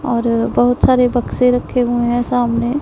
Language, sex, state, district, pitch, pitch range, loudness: Hindi, male, Punjab, Pathankot, 245 Hz, 240-250 Hz, -15 LUFS